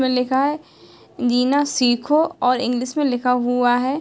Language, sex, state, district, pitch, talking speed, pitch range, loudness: Hindi, female, Bihar, Gopalganj, 250 Hz, 180 wpm, 245-285 Hz, -19 LUFS